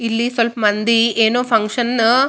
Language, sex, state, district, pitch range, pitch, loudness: Kannada, female, Karnataka, Raichur, 225-240 Hz, 230 Hz, -16 LUFS